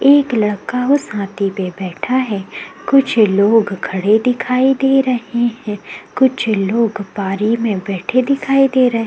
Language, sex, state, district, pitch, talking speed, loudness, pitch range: Hindi, female, Uttarakhand, Tehri Garhwal, 230 Hz, 150 wpm, -16 LUFS, 205-260 Hz